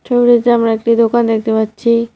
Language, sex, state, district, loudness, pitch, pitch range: Bengali, female, West Bengal, Cooch Behar, -13 LUFS, 230 Hz, 225-235 Hz